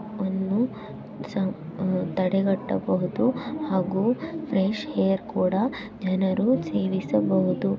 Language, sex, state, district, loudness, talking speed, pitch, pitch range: Kannada, female, Karnataka, Gulbarga, -25 LUFS, 70 wpm, 195 Hz, 185-220 Hz